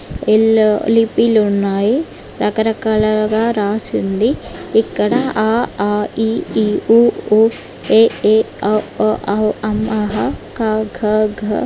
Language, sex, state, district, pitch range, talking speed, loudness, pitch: Telugu, female, Andhra Pradesh, Guntur, 210-225 Hz, 125 wpm, -15 LUFS, 215 Hz